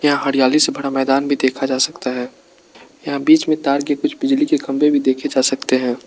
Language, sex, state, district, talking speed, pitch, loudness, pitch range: Hindi, male, Arunachal Pradesh, Lower Dibang Valley, 235 wpm, 140 Hz, -17 LUFS, 130-150 Hz